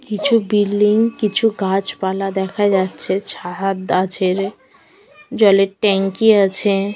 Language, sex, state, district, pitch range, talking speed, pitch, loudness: Bengali, female, West Bengal, Malda, 195-215 Hz, 95 wpm, 200 Hz, -17 LUFS